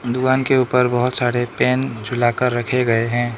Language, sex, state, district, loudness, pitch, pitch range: Hindi, male, Arunachal Pradesh, Lower Dibang Valley, -18 LUFS, 125 Hz, 120-125 Hz